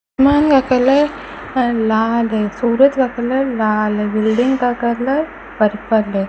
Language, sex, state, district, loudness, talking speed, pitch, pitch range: Hindi, female, Rajasthan, Bikaner, -16 LUFS, 145 wpm, 240 Hz, 220-265 Hz